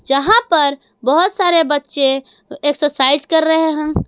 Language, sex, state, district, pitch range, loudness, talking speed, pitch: Hindi, female, Jharkhand, Garhwa, 275-320 Hz, -14 LUFS, 130 wpm, 295 Hz